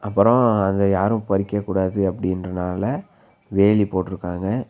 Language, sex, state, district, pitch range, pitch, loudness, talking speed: Tamil, male, Tamil Nadu, Nilgiris, 95-105 Hz, 100 Hz, -21 LUFS, 100 wpm